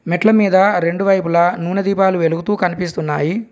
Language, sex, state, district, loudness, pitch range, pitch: Telugu, male, Telangana, Komaram Bheem, -15 LUFS, 170-195 Hz, 180 Hz